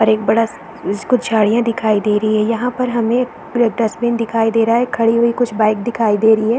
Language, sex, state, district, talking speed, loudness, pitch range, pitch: Hindi, female, Chhattisgarh, Balrampur, 235 wpm, -16 LUFS, 215-235 Hz, 225 Hz